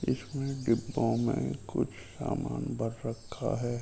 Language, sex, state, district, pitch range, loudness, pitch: Hindi, male, Uttar Pradesh, Ghazipur, 115-135 Hz, -33 LUFS, 115 Hz